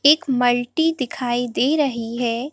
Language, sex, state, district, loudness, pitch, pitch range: Hindi, female, Madhya Pradesh, Bhopal, -20 LUFS, 255 Hz, 245-295 Hz